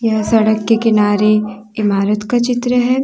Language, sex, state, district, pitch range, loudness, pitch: Hindi, female, Jharkhand, Deoghar, 210-240 Hz, -14 LUFS, 220 Hz